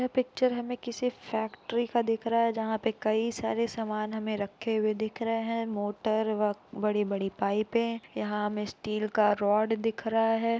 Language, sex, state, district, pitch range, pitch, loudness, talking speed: Hindi, female, Uttar Pradesh, Jalaun, 215-230 Hz, 220 Hz, -30 LUFS, 205 wpm